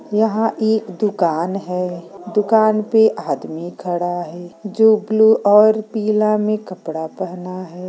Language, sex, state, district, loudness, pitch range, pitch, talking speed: Hindi, female, Bihar, Saran, -17 LUFS, 175-215 Hz, 210 Hz, 130 wpm